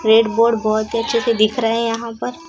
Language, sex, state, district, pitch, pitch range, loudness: Hindi, female, Maharashtra, Gondia, 230 Hz, 225-230 Hz, -17 LUFS